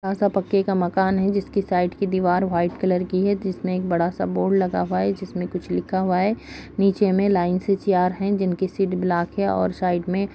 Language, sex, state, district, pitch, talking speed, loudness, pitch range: Kumaoni, female, Uttarakhand, Uttarkashi, 185 Hz, 225 wpm, -22 LUFS, 180-195 Hz